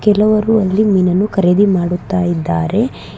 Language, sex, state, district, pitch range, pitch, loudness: Kannada, female, Karnataka, Bangalore, 175-210 Hz, 190 Hz, -14 LUFS